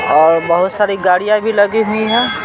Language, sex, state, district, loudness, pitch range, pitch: Hindi, male, Bihar, Patna, -13 LUFS, 180-215 Hz, 205 Hz